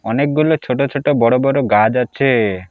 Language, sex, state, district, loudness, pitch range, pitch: Bengali, male, West Bengal, Alipurduar, -15 LUFS, 115-140 Hz, 135 Hz